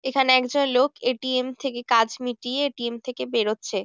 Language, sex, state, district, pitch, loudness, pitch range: Bengali, female, West Bengal, Jhargram, 250 Hz, -23 LUFS, 235-260 Hz